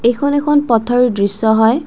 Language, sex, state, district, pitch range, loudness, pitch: Assamese, female, Assam, Kamrup Metropolitan, 220-285 Hz, -13 LUFS, 240 Hz